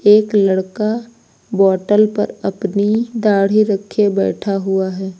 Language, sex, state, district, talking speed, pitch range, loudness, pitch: Hindi, female, Uttar Pradesh, Lucknow, 115 wpm, 195-215 Hz, -16 LUFS, 205 Hz